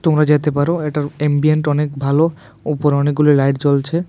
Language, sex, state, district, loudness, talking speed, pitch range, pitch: Bengali, male, Tripura, West Tripura, -16 LUFS, 160 wpm, 145-155 Hz, 150 Hz